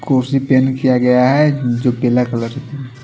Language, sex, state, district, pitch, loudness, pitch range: Hindi, male, Haryana, Rohtak, 130 Hz, -15 LUFS, 125-135 Hz